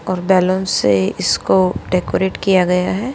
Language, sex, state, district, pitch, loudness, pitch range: Hindi, female, Haryana, Charkhi Dadri, 185 Hz, -16 LUFS, 180-190 Hz